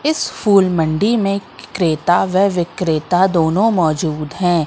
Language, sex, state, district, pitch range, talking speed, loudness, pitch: Hindi, female, Madhya Pradesh, Katni, 160-195 Hz, 130 wpm, -16 LUFS, 180 Hz